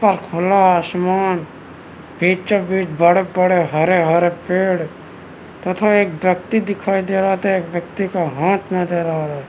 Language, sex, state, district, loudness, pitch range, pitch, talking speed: Hindi, male, Chhattisgarh, Balrampur, -17 LUFS, 175-195 Hz, 185 Hz, 150 wpm